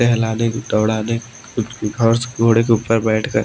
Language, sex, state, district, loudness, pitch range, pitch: Hindi, male, Maharashtra, Washim, -18 LUFS, 110-115 Hz, 115 Hz